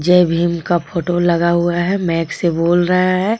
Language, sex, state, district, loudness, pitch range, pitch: Hindi, female, Jharkhand, Garhwa, -16 LUFS, 170-180 Hz, 175 Hz